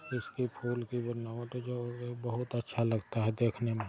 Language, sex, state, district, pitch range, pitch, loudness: Hindi, male, Bihar, Gopalganj, 115-120 Hz, 120 Hz, -35 LUFS